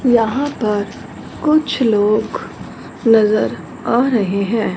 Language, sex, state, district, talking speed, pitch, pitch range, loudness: Hindi, female, Punjab, Fazilka, 100 wpm, 225 Hz, 210-250 Hz, -16 LUFS